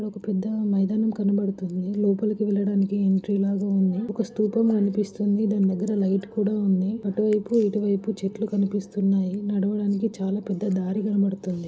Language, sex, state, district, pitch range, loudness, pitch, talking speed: Telugu, female, Andhra Pradesh, Guntur, 195-210 Hz, -24 LUFS, 200 Hz, 155 wpm